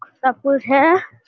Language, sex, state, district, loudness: Hindi, male, Bihar, Jamui, -16 LUFS